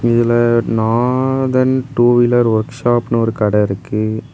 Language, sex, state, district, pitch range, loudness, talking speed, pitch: Tamil, male, Tamil Nadu, Kanyakumari, 110-125 Hz, -15 LUFS, 85 wpm, 120 Hz